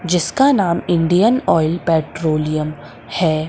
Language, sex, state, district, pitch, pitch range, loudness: Hindi, female, Madhya Pradesh, Umaria, 165 Hz, 155-180 Hz, -17 LUFS